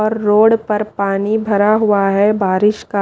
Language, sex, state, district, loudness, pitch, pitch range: Hindi, female, Haryana, Rohtak, -14 LUFS, 210 Hz, 200-215 Hz